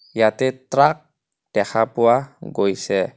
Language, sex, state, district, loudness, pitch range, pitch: Assamese, male, Assam, Kamrup Metropolitan, -19 LUFS, 115-150 Hz, 130 Hz